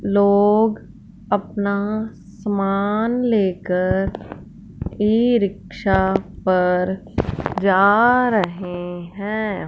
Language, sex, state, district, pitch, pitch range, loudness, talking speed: Hindi, female, Punjab, Fazilka, 200 Hz, 190-215 Hz, -19 LUFS, 55 wpm